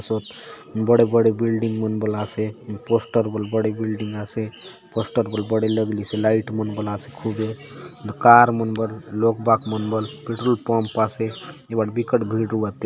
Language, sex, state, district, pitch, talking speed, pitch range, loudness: Halbi, male, Chhattisgarh, Bastar, 110 Hz, 175 wpm, 110-115 Hz, -21 LUFS